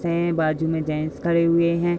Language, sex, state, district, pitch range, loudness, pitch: Hindi, female, Uttar Pradesh, Budaun, 160-170 Hz, -22 LUFS, 170 Hz